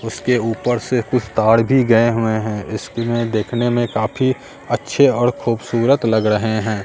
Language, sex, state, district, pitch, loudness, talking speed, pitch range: Hindi, male, Bihar, Katihar, 115 Hz, -17 LUFS, 165 wpm, 110-120 Hz